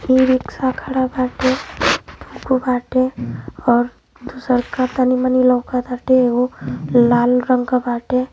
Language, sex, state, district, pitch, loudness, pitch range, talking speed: Hindi, female, Uttar Pradesh, Ghazipur, 255 Hz, -17 LUFS, 245-255 Hz, 100 wpm